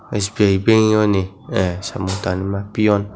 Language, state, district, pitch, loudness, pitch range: Kokborok, Tripura, West Tripura, 100 Hz, -18 LUFS, 95-110 Hz